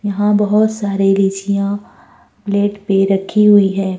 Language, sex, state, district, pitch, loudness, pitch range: Hindi, female, Uttar Pradesh, Jyotiba Phule Nagar, 200 Hz, -14 LUFS, 195-205 Hz